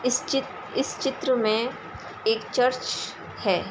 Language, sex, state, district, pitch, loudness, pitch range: Hindi, female, Bihar, Darbhanga, 255 Hz, -26 LUFS, 250-270 Hz